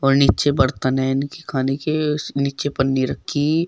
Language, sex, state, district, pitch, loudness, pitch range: Hindi, female, Uttar Pradesh, Shamli, 140 Hz, -20 LUFS, 135-150 Hz